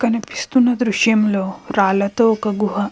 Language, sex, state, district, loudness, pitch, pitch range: Telugu, female, Andhra Pradesh, Krishna, -17 LUFS, 215 Hz, 200-230 Hz